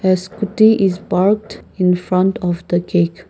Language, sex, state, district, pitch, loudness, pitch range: English, female, Nagaland, Kohima, 185 Hz, -16 LUFS, 180-200 Hz